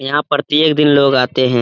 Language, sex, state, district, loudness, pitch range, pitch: Hindi, male, Bihar, Lakhisarai, -13 LUFS, 130-150 Hz, 145 Hz